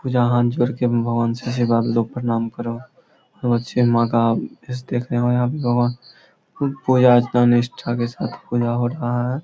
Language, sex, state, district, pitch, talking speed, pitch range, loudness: Hindi, male, Bihar, Samastipur, 120 Hz, 205 wpm, 120-125 Hz, -20 LUFS